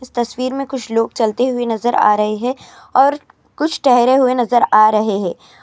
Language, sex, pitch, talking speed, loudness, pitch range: Urdu, female, 245 Hz, 180 wpm, -15 LUFS, 225-260 Hz